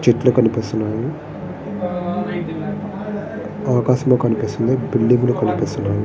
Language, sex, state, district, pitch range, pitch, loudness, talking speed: Telugu, male, Andhra Pradesh, Srikakulam, 115-180 Hz, 130 Hz, -19 LUFS, 70 wpm